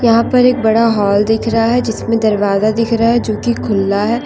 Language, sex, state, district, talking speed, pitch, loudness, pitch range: Hindi, female, Jharkhand, Deoghar, 240 wpm, 225 Hz, -13 LUFS, 215-235 Hz